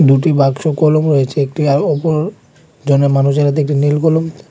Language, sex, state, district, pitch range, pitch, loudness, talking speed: Bengali, male, Tripura, West Tripura, 140-155 Hz, 145 Hz, -14 LUFS, 160 wpm